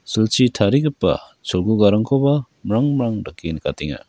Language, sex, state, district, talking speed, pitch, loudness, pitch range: Garo, male, Meghalaya, West Garo Hills, 105 wpm, 110 Hz, -19 LUFS, 105-135 Hz